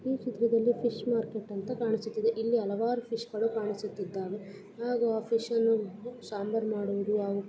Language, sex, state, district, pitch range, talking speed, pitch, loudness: Kannada, female, Karnataka, Belgaum, 205-235 Hz, 145 wpm, 225 Hz, -31 LUFS